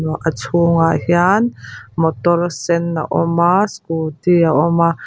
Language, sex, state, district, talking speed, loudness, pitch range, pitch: Mizo, female, Mizoram, Aizawl, 140 wpm, -16 LUFS, 160-175 Hz, 170 Hz